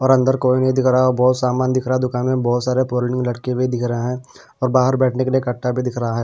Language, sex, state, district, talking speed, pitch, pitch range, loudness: Hindi, male, Punjab, Pathankot, 305 wpm, 125 Hz, 125-130 Hz, -18 LUFS